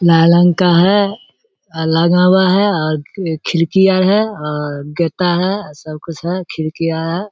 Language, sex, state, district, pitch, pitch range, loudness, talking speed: Maithili, male, Bihar, Samastipur, 170 Hz, 160-190 Hz, -14 LUFS, 170 wpm